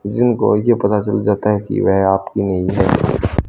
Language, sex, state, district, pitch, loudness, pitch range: Hindi, male, Haryana, Rohtak, 100 Hz, -16 LUFS, 95-105 Hz